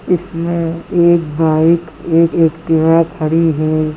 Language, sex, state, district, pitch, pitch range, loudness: Hindi, female, Madhya Pradesh, Bhopal, 165 Hz, 160-170 Hz, -14 LUFS